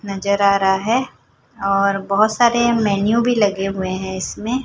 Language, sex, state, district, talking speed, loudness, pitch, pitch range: Hindi, female, Chhattisgarh, Raipur, 170 wpm, -18 LUFS, 200 Hz, 195-235 Hz